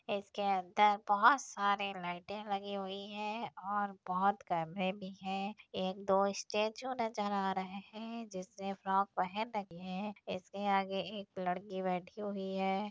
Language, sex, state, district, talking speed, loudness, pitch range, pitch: Hindi, female, Uttar Pradesh, Deoria, 155 wpm, -36 LUFS, 190-205 Hz, 200 Hz